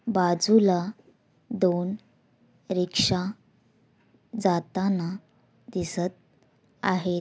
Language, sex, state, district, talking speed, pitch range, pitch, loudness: Marathi, female, Maharashtra, Dhule, 50 wpm, 175-200 Hz, 185 Hz, -26 LUFS